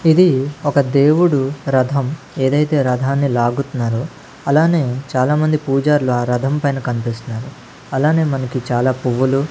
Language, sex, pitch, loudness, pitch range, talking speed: Telugu, male, 135 Hz, -17 LUFS, 130-145 Hz, 115 wpm